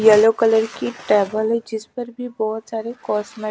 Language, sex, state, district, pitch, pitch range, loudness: Hindi, female, Chhattisgarh, Raipur, 220 Hz, 215-230 Hz, -20 LUFS